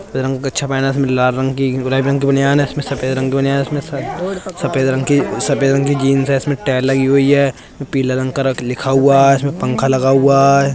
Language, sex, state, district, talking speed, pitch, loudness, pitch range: Hindi, male, Uttar Pradesh, Budaun, 285 wpm, 135 Hz, -15 LUFS, 135-140 Hz